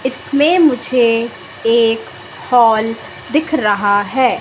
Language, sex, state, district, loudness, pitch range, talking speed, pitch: Hindi, female, Madhya Pradesh, Katni, -14 LUFS, 225-275 Hz, 95 wpm, 240 Hz